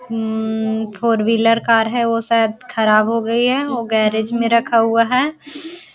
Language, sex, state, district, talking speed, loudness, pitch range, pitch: Hindi, female, Bihar, Araria, 180 wpm, -16 LUFS, 220-240 Hz, 230 Hz